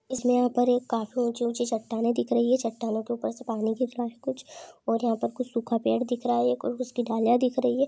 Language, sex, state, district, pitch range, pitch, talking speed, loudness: Hindi, female, Andhra Pradesh, Anantapur, 230-250 Hz, 240 Hz, 260 wpm, -27 LUFS